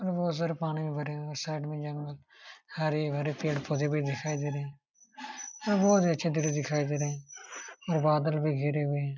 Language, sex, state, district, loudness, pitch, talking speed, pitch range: Hindi, male, Jharkhand, Jamtara, -31 LUFS, 150 Hz, 215 wpm, 145-165 Hz